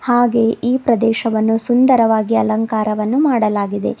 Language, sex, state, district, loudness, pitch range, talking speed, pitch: Kannada, female, Karnataka, Bidar, -15 LUFS, 220-240 Hz, 90 wpm, 225 Hz